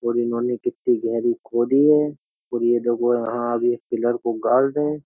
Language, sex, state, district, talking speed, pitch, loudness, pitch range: Hindi, male, Uttar Pradesh, Jyotiba Phule Nagar, 190 wpm, 120 Hz, -21 LUFS, 120-125 Hz